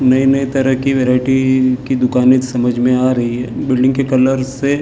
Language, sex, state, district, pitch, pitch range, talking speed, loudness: Hindi, male, Maharashtra, Gondia, 130 Hz, 125-135 Hz, 200 wpm, -14 LUFS